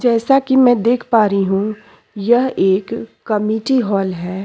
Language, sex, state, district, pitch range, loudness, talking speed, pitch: Hindi, female, Chhattisgarh, Sukma, 200-240 Hz, -16 LUFS, 160 wpm, 220 Hz